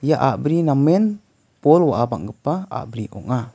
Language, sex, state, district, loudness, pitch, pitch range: Garo, male, Meghalaya, West Garo Hills, -19 LUFS, 140 Hz, 115-160 Hz